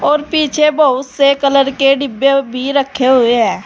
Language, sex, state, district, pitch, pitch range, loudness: Hindi, female, Uttar Pradesh, Saharanpur, 275 Hz, 260-285 Hz, -12 LUFS